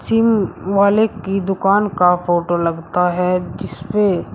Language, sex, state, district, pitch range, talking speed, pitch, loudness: Hindi, male, Uttar Pradesh, Shamli, 175-200 Hz, 125 wpm, 190 Hz, -17 LUFS